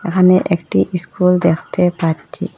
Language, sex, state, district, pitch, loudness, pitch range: Bengali, female, Assam, Hailakandi, 180 Hz, -15 LUFS, 170-180 Hz